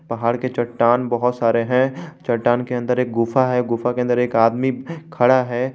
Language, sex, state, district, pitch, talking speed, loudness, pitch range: Hindi, male, Jharkhand, Garhwa, 125 Hz, 200 wpm, -19 LUFS, 120-125 Hz